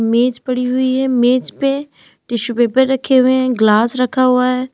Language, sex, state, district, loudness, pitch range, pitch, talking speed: Hindi, female, Uttar Pradesh, Lalitpur, -15 LUFS, 245-260 Hz, 255 Hz, 190 wpm